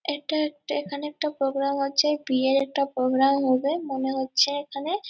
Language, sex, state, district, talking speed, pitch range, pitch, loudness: Bengali, female, West Bengal, Purulia, 155 wpm, 270-295 Hz, 275 Hz, -25 LUFS